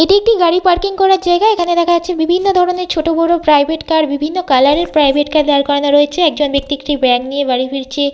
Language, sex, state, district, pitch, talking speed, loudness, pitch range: Bengali, female, West Bengal, Jhargram, 315 Hz, 215 wpm, -13 LUFS, 285-355 Hz